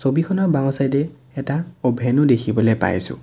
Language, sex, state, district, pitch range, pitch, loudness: Assamese, male, Assam, Sonitpur, 115-150 Hz, 135 Hz, -19 LUFS